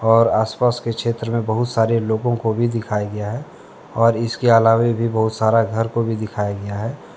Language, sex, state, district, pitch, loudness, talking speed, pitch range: Hindi, male, Jharkhand, Deoghar, 115 Hz, -19 LUFS, 220 wpm, 110-115 Hz